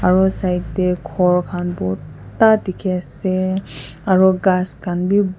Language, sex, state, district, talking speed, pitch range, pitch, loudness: Nagamese, female, Nagaland, Kohima, 120 wpm, 175-190 Hz, 185 Hz, -18 LUFS